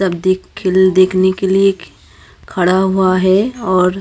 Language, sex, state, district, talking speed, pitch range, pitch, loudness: Hindi, female, Maharashtra, Gondia, 150 wpm, 185-190 Hz, 185 Hz, -13 LUFS